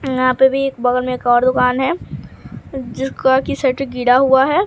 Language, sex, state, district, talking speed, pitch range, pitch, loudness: Hindi, male, Bihar, Katihar, 205 wpm, 250-270 Hz, 260 Hz, -16 LUFS